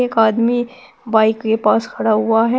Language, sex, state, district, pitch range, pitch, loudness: Hindi, female, Uttar Pradesh, Shamli, 220-240 Hz, 225 Hz, -16 LUFS